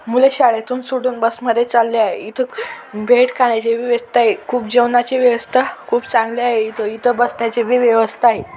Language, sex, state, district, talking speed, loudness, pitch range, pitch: Marathi, male, Maharashtra, Dhule, 145 wpm, -16 LUFS, 230-250 Hz, 240 Hz